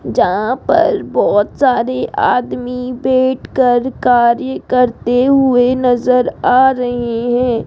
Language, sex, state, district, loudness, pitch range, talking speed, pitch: Hindi, female, Rajasthan, Jaipur, -14 LUFS, 245-255 Hz, 100 wpm, 250 Hz